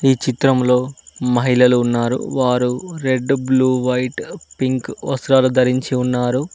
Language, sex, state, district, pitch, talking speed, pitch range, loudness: Telugu, male, Telangana, Mahabubabad, 130 Hz, 110 wpm, 125-130 Hz, -17 LUFS